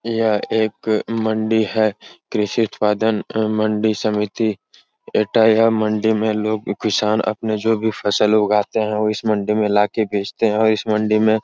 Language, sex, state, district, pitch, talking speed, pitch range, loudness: Hindi, male, Uttar Pradesh, Etah, 110 Hz, 155 wpm, 105-110 Hz, -18 LUFS